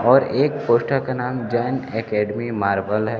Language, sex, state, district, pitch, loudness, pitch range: Hindi, male, Bihar, Kaimur, 115 Hz, -21 LUFS, 105-125 Hz